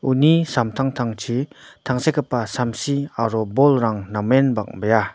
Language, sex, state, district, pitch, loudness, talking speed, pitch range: Garo, male, Meghalaya, North Garo Hills, 125 Hz, -20 LUFS, 95 wpm, 110-135 Hz